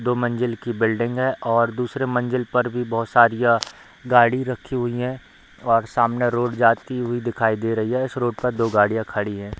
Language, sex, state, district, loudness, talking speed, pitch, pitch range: Hindi, male, Bihar, Darbhanga, -21 LUFS, 220 wpm, 120 Hz, 115-125 Hz